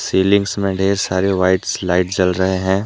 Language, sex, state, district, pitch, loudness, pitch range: Hindi, male, Jharkhand, Deoghar, 95 Hz, -17 LUFS, 95-100 Hz